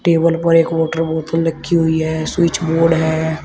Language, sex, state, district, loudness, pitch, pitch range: Hindi, male, Uttar Pradesh, Shamli, -16 LUFS, 165 Hz, 160-165 Hz